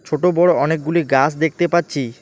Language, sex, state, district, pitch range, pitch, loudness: Bengali, male, West Bengal, Alipurduar, 145-170 Hz, 160 Hz, -17 LUFS